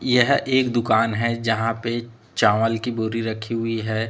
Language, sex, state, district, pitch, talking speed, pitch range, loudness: Hindi, male, Chhattisgarh, Raipur, 115 Hz, 175 wpm, 110-120 Hz, -21 LUFS